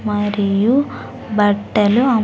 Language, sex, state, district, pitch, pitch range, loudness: Telugu, female, Andhra Pradesh, Sri Satya Sai, 210 Hz, 205-225 Hz, -17 LUFS